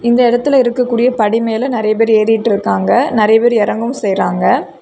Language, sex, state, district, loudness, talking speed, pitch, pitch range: Tamil, female, Tamil Nadu, Kanyakumari, -13 LUFS, 160 wpm, 225 Hz, 215-240 Hz